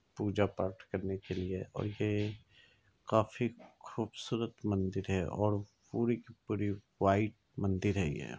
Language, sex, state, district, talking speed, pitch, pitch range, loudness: Hindi, male, Bihar, Lakhisarai, 135 wpm, 105 Hz, 95-110 Hz, -36 LUFS